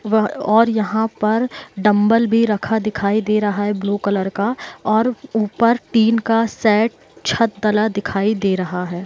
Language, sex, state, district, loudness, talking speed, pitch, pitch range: Hindi, female, Bihar, Muzaffarpur, -18 LUFS, 165 wpm, 215 Hz, 205-225 Hz